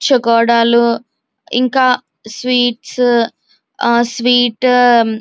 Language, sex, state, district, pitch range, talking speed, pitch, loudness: Telugu, female, Andhra Pradesh, Visakhapatnam, 235-250 Hz, 70 wpm, 240 Hz, -13 LUFS